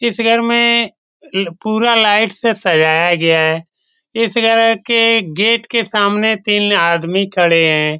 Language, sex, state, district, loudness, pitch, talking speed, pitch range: Hindi, male, Bihar, Saran, -13 LUFS, 215 Hz, 145 wpm, 175-230 Hz